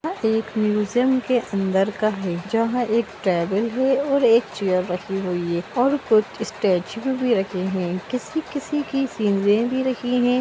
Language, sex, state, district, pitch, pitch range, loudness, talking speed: Hindi, female, Bihar, Vaishali, 220 Hz, 195-255 Hz, -22 LUFS, 145 wpm